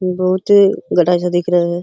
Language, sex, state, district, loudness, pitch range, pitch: Hindi, male, Uttar Pradesh, Hamirpur, -14 LUFS, 175-185 Hz, 180 Hz